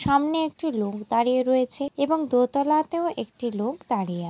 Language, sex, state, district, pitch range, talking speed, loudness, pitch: Bengali, female, West Bengal, Jalpaiguri, 240-305 Hz, 155 wpm, -24 LUFS, 260 Hz